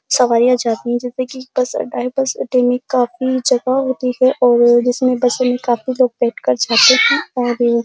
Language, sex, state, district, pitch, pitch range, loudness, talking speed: Hindi, female, Uttar Pradesh, Jyotiba Phule Nagar, 250 Hz, 240-255 Hz, -15 LUFS, 200 wpm